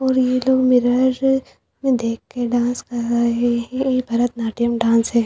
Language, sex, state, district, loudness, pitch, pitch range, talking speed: Hindi, female, Bihar, Jahanabad, -19 LUFS, 245 Hz, 235-255 Hz, 170 wpm